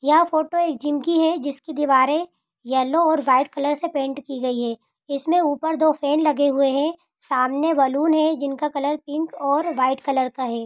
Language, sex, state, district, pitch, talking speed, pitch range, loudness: Hindi, female, Bihar, Saran, 290 Hz, 195 wpm, 270-315 Hz, -21 LUFS